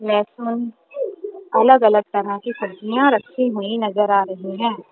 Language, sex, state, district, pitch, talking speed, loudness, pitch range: Hindi, female, Punjab, Kapurthala, 215 Hz, 135 wpm, -19 LUFS, 205-250 Hz